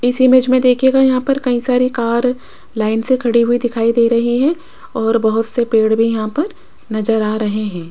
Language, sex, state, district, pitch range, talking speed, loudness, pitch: Hindi, female, Rajasthan, Jaipur, 225-255 Hz, 210 wpm, -15 LUFS, 235 Hz